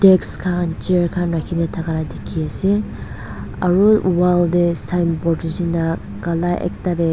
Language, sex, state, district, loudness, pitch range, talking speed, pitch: Nagamese, female, Nagaland, Dimapur, -19 LUFS, 165-180 Hz, 145 wpm, 175 Hz